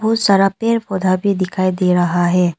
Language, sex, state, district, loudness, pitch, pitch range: Hindi, female, Arunachal Pradesh, Longding, -16 LUFS, 185 Hz, 180-200 Hz